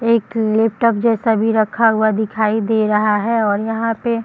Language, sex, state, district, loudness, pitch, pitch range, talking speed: Hindi, female, Bihar, Bhagalpur, -16 LUFS, 220 Hz, 215-230 Hz, 200 wpm